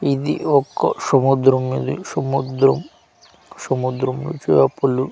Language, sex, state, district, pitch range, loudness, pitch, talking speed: Telugu, male, Andhra Pradesh, Manyam, 130-140 Hz, -19 LUFS, 135 Hz, 80 wpm